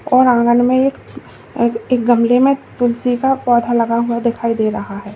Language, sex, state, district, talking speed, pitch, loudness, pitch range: Hindi, female, Uttar Pradesh, Lalitpur, 185 wpm, 240 Hz, -15 LUFS, 230-250 Hz